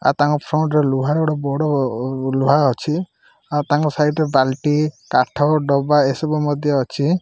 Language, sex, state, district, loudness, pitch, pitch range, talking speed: Odia, male, Odisha, Malkangiri, -18 LUFS, 145 Hz, 135-155 Hz, 150 wpm